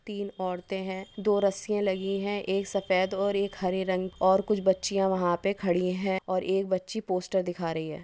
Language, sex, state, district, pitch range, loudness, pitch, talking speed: Hindi, female, Maharashtra, Dhule, 185-200 Hz, -28 LUFS, 190 Hz, 200 wpm